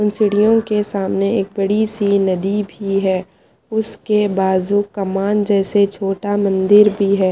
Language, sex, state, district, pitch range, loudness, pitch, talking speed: Hindi, female, Haryana, Charkhi Dadri, 195-210 Hz, -17 LUFS, 200 Hz, 130 wpm